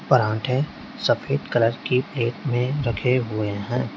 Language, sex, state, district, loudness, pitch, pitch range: Hindi, male, Uttar Pradesh, Lalitpur, -23 LUFS, 120 Hz, 110-130 Hz